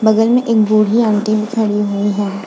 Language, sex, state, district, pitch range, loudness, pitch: Hindi, female, Goa, North and South Goa, 205-220 Hz, -14 LUFS, 215 Hz